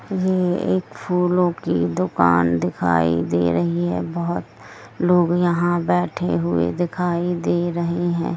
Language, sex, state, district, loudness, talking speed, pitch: Hindi, female, Jharkhand, Jamtara, -20 LUFS, 135 wpm, 115 Hz